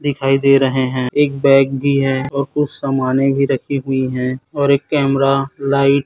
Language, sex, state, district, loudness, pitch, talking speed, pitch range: Hindi, male, Chhattisgarh, Raipur, -16 LUFS, 135 Hz, 200 wpm, 135-140 Hz